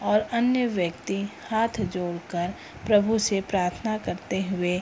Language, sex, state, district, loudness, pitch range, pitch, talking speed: Hindi, female, Bihar, Purnia, -26 LUFS, 180-220 Hz, 195 Hz, 135 wpm